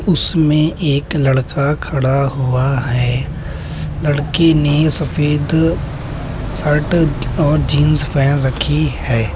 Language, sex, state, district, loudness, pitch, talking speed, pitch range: Hindi, male, Uttar Pradesh, Budaun, -15 LUFS, 145 Hz, 95 wpm, 135-150 Hz